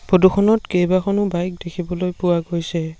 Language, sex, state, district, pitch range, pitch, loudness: Assamese, male, Assam, Sonitpur, 175-185 Hz, 180 Hz, -19 LUFS